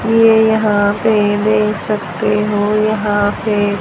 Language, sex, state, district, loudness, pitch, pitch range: Hindi, male, Haryana, Jhajjar, -14 LUFS, 210 Hz, 205-215 Hz